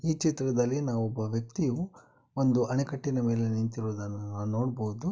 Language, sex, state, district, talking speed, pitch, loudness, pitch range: Kannada, male, Karnataka, Bellary, 130 wpm, 120 Hz, -30 LUFS, 110-135 Hz